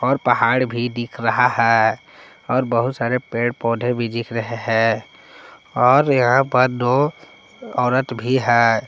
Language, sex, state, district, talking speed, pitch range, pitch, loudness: Hindi, male, Jharkhand, Palamu, 150 wpm, 115-130 Hz, 120 Hz, -18 LUFS